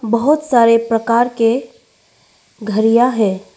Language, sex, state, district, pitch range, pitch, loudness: Hindi, female, Arunachal Pradesh, Lower Dibang Valley, 225-245 Hz, 230 Hz, -14 LUFS